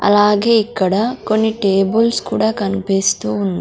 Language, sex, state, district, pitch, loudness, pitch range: Telugu, female, Andhra Pradesh, Sri Satya Sai, 205 Hz, -16 LUFS, 195-220 Hz